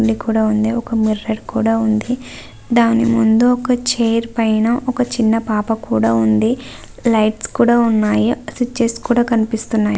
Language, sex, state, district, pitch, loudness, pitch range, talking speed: Telugu, female, Andhra Pradesh, Visakhapatnam, 225 Hz, -16 LUFS, 220-235 Hz, 145 wpm